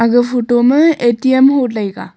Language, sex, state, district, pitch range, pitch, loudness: Wancho, female, Arunachal Pradesh, Longding, 240-265 Hz, 245 Hz, -12 LUFS